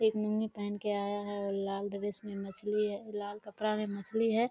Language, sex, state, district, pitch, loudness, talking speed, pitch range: Hindi, female, Bihar, Kishanganj, 205 Hz, -35 LUFS, 240 wpm, 200-215 Hz